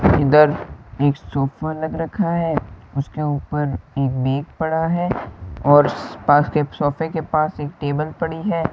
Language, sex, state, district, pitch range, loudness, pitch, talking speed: Hindi, male, Rajasthan, Bikaner, 140-160 Hz, -20 LUFS, 150 Hz, 160 wpm